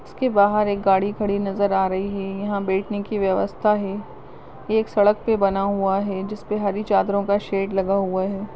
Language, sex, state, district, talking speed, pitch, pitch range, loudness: Hindi, female, Rajasthan, Nagaur, 205 wpm, 200 Hz, 195-210 Hz, -22 LUFS